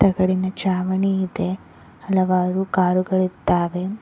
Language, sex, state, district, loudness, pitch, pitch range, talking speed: Kannada, female, Karnataka, Koppal, -21 LUFS, 185 Hz, 185-190 Hz, 90 wpm